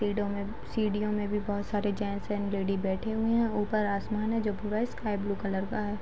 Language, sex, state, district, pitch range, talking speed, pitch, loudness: Hindi, female, Bihar, Gopalganj, 200-215 Hz, 220 wpm, 210 Hz, -31 LUFS